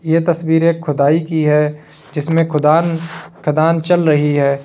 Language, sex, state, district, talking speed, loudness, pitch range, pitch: Hindi, male, Uttar Pradesh, Lalitpur, 155 wpm, -15 LUFS, 150-165 Hz, 155 Hz